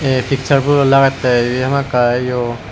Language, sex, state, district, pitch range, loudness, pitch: Chakma, male, Tripura, West Tripura, 120-135 Hz, -14 LUFS, 130 Hz